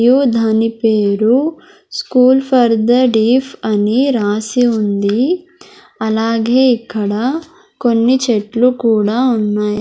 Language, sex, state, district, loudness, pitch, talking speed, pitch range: Telugu, female, Andhra Pradesh, Sri Satya Sai, -14 LUFS, 240 Hz, 100 wpm, 220-265 Hz